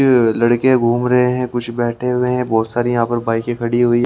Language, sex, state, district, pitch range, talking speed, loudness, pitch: Hindi, male, Haryana, Rohtak, 115-125 Hz, 220 wpm, -16 LUFS, 120 Hz